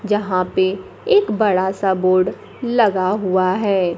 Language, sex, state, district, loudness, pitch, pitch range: Hindi, female, Bihar, Kaimur, -18 LUFS, 190 Hz, 185-210 Hz